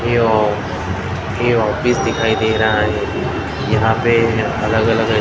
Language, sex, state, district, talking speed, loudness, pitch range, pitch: Hindi, male, Maharashtra, Mumbai Suburban, 140 wpm, -16 LUFS, 105-115 Hz, 110 Hz